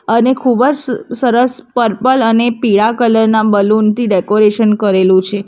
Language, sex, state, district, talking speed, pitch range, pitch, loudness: Gujarati, female, Gujarat, Valsad, 145 wpm, 210-245 Hz, 225 Hz, -12 LUFS